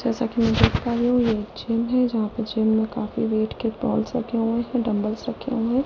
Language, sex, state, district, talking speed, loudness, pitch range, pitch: Hindi, female, Delhi, New Delhi, 245 wpm, -23 LUFS, 220-245 Hz, 230 Hz